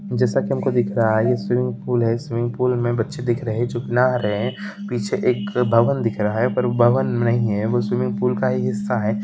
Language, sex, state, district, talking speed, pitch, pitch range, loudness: Hindi, male, Chhattisgarh, Bilaspur, 265 wpm, 115 Hz, 105-120 Hz, -20 LUFS